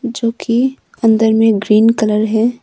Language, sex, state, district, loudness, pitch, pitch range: Hindi, female, Arunachal Pradesh, Longding, -13 LUFS, 225 Hz, 220-235 Hz